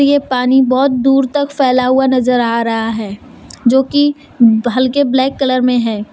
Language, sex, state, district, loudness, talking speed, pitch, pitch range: Hindi, female, Jharkhand, Deoghar, -13 LUFS, 175 wpm, 255 Hz, 240-270 Hz